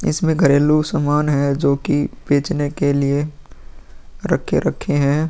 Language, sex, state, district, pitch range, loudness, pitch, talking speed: Hindi, male, Bihar, Vaishali, 140-150 Hz, -18 LUFS, 145 Hz, 125 wpm